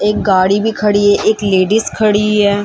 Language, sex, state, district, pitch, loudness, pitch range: Hindi, female, Bihar, Samastipur, 205 Hz, -12 LUFS, 200-210 Hz